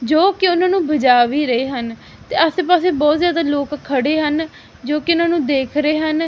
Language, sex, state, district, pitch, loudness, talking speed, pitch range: Punjabi, female, Punjab, Fazilka, 300 Hz, -16 LUFS, 220 wpm, 280-335 Hz